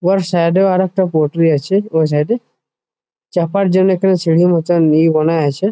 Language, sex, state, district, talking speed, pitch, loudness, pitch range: Bengali, male, West Bengal, Jhargram, 200 wpm, 175 Hz, -14 LUFS, 160-190 Hz